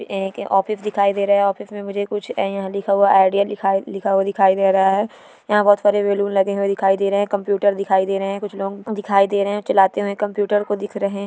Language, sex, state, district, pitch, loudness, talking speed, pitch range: Hindi, female, Maharashtra, Dhule, 200 Hz, -19 LUFS, 260 wpm, 195-205 Hz